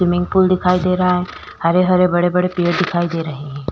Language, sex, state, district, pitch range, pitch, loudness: Hindi, female, Uttar Pradesh, Jyotiba Phule Nagar, 175-180 Hz, 180 Hz, -16 LUFS